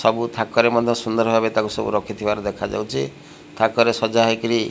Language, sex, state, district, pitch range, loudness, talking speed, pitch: Odia, male, Odisha, Malkangiri, 110-115 Hz, -20 LUFS, 155 wpm, 115 Hz